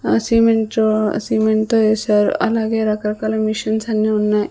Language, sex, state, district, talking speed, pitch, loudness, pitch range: Telugu, female, Andhra Pradesh, Sri Satya Sai, 135 wpm, 215 Hz, -17 LUFS, 215-220 Hz